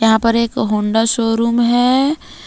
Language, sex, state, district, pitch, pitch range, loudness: Hindi, female, Jharkhand, Palamu, 230 Hz, 225-240 Hz, -15 LUFS